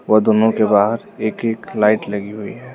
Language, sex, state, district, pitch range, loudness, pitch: Hindi, male, Arunachal Pradesh, Lower Dibang Valley, 105-110 Hz, -17 LUFS, 110 Hz